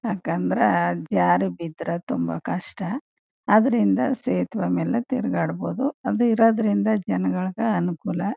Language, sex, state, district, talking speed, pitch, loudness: Kannada, female, Karnataka, Chamarajanagar, 95 wpm, 205 Hz, -23 LUFS